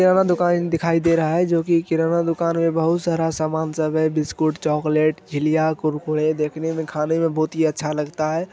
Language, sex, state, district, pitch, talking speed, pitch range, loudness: Hindi, male, Bihar, Araria, 160 Hz, 210 wpm, 155-165 Hz, -20 LUFS